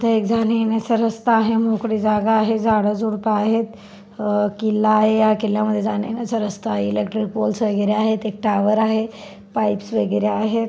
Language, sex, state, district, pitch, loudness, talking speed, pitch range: Marathi, female, Maharashtra, Chandrapur, 215 Hz, -19 LUFS, 185 wpm, 210-225 Hz